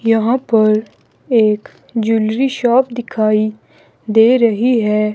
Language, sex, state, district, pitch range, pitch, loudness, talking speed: Hindi, female, Himachal Pradesh, Shimla, 215-245 Hz, 225 Hz, -15 LUFS, 105 wpm